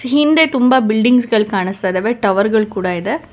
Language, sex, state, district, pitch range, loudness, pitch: Kannada, female, Karnataka, Bangalore, 195-255 Hz, -14 LUFS, 220 Hz